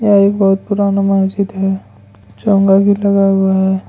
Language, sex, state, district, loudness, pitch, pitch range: Hindi, male, Jharkhand, Ranchi, -13 LUFS, 195 Hz, 190-200 Hz